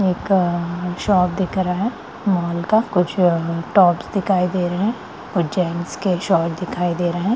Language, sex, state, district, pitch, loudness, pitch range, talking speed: Hindi, female, Bihar, Gaya, 180 Hz, -19 LUFS, 175-195 Hz, 170 wpm